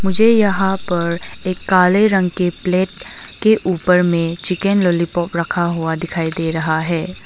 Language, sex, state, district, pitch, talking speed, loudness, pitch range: Hindi, female, Arunachal Pradesh, Longding, 180 Hz, 155 wpm, -17 LUFS, 170-195 Hz